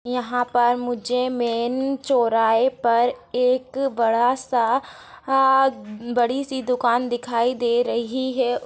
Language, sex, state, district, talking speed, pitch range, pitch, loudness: Hindi, female, Maharashtra, Chandrapur, 105 wpm, 235-260 Hz, 245 Hz, -21 LUFS